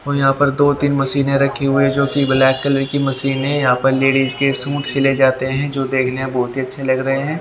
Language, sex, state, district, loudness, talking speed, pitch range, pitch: Hindi, male, Haryana, Jhajjar, -16 LUFS, 260 wpm, 135-140 Hz, 135 Hz